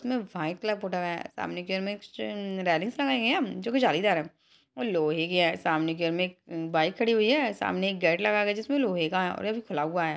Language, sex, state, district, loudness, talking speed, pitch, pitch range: Hindi, female, Uttarakhand, Tehri Garhwal, -28 LUFS, 260 wpm, 190 Hz, 170-225 Hz